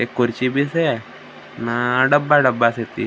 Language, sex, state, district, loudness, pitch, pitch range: Hindi, male, Maharashtra, Gondia, -18 LUFS, 125 Hz, 120-145 Hz